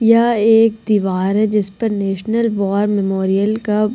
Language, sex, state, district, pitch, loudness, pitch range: Hindi, female, Bihar, Vaishali, 210 Hz, -16 LUFS, 195-225 Hz